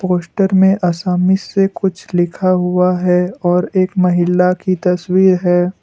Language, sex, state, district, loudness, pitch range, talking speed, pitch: Hindi, male, Assam, Kamrup Metropolitan, -14 LUFS, 180-190 Hz, 145 wpm, 180 Hz